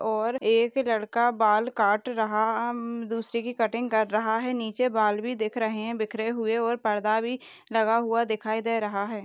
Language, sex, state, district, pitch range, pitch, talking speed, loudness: Hindi, female, Uttar Pradesh, Deoria, 220-235 Hz, 225 Hz, 190 wpm, -26 LUFS